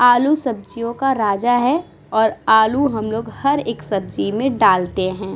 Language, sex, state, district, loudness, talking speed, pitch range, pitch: Hindi, female, Uttar Pradesh, Muzaffarnagar, -18 LUFS, 170 wpm, 215-260 Hz, 230 Hz